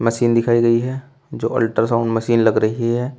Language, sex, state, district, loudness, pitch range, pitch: Hindi, male, Uttar Pradesh, Shamli, -18 LUFS, 115-120 Hz, 115 Hz